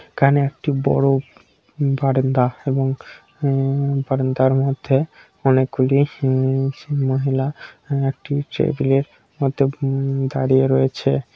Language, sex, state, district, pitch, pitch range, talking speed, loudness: Bengali, male, West Bengal, Kolkata, 135 Hz, 130-140 Hz, 70 wpm, -19 LUFS